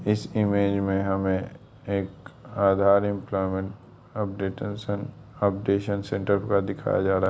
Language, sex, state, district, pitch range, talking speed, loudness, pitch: Hindi, male, Bihar, Jamui, 95-105 Hz, 125 wpm, -26 LUFS, 100 Hz